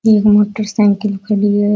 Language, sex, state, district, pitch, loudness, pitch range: Rajasthani, female, Rajasthan, Nagaur, 210 Hz, -14 LUFS, 205-210 Hz